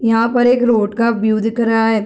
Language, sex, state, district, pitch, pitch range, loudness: Hindi, female, Bihar, Gopalganj, 230 Hz, 220-235 Hz, -15 LUFS